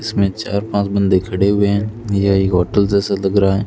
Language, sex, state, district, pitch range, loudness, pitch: Hindi, male, Rajasthan, Bikaner, 95-100 Hz, -16 LUFS, 100 Hz